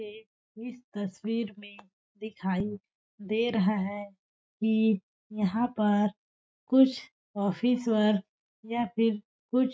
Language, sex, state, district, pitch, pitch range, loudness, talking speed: Hindi, female, Chhattisgarh, Balrampur, 215 Hz, 205-230 Hz, -29 LUFS, 85 wpm